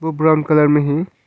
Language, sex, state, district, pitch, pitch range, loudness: Hindi, male, Arunachal Pradesh, Longding, 155 Hz, 150-160 Hz, -15 LUFS